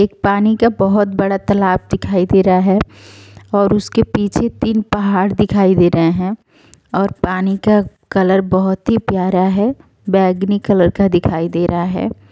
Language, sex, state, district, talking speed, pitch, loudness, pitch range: Hindi, female, Uttar Pradesh, Etah, 165 wpm, 195 Hz, -15 LUFS, 185-205 Hz